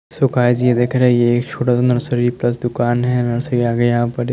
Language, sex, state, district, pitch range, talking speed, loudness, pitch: Hindi, male, Chandigarh, Chandigarh, 120-125 Hz, 235 wpm, -16 LUFS, 120 Hz